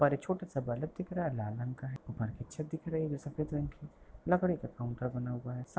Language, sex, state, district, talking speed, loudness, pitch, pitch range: Hindi, male, Bihar, Lakhisarai, 320 wpm, -37 LUFS, 145 Hz, 125-160 Hz